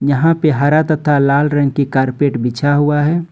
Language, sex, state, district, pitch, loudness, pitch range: Hindi, male, Jharkhand, Ranchi, 145 Hz, -14 LUFS, 140-150 Hz